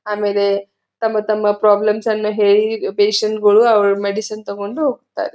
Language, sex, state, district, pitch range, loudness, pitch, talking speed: Kannada, female, Karnataka, Belgaum, 205-220 Hz, -16 LUFS, 215 Hz, 135 wpm